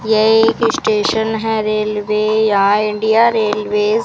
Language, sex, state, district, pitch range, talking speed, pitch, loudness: Hindi, female, Rajasthan, Bikaner, 210-220 Hz, 135 wpm, 215 Hz, -15 LUFS